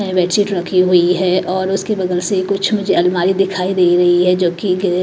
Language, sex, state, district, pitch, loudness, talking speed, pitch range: Hindi, female, Maharashtra, Mumbai Suburban, 185 Hz, -15 LUFS, 215 wpm, 180-195 Hz